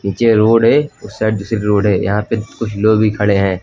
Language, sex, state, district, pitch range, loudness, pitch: Hindi, male, Uttar Pradesh, Lucknow, 100-110 Hz, -14 LUFS, 105 Hz